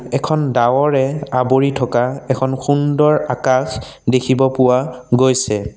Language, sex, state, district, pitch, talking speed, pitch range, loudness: Assamese, male, Assam, Sonitpur, 130 Hz, 105 wpm, 125-135 Hz, -16 LUFS